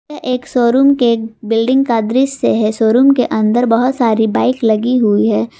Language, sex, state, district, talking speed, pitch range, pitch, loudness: Hindi, female, Jharkhand, Garhwa, 180 wpm, 220-255 Hz, 235 Hz, -13 LUFS